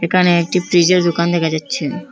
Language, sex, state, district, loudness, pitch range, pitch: Bengali, female, Assam, Hailakandi, -15 LUFS, 170-180 Hz, 175 Hz